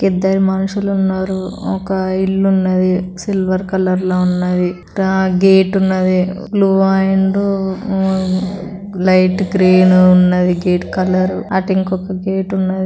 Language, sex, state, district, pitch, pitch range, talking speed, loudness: Telugu, female, Telangana, Karimnagar, 190 Hz, 185-195 Hz, 110 wpm, -14 LUFS